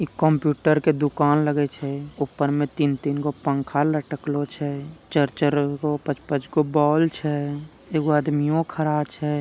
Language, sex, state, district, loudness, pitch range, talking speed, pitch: Angika, female, Bihar, Begusarai, -23 LUFS, 145-155 Hz, 165 wpm, 150 Hz